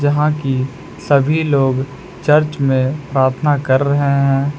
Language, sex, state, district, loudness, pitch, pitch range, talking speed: Hindi, male, Jharkhand, Palamu, -16 LUFS, 140 Hz, 135-150 Hz, 130 wpm